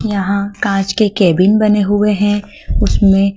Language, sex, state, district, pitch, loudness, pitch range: Hindi, female, Madhya Pradesh, Dhar, 205 Hz, -14 LUFS, 195-210 Hz